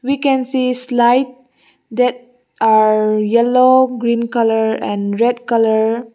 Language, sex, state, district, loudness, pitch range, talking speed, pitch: English, female, Mizoram, Aizawl, -15 LUFS, 225-255 Hz, 115 wpm, 240 Hz